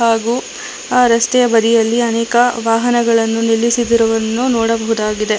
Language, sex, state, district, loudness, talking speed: Kannada, male, Karnataka, Bangalore, -14 LUFS, 90 wpm